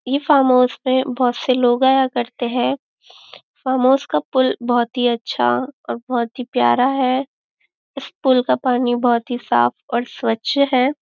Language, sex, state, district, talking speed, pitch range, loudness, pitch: Hindi, female, Maharashtra, Nagpur, 165 wpm, 240-265 Hz, -18 LUFS, 255 Hz